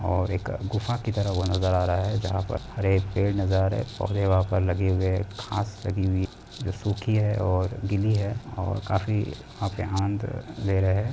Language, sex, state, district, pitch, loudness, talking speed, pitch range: Hindi, male, Bihar, Jamui, 100 Hz, -26 LUFS, 200 wpm, 95-105 Hz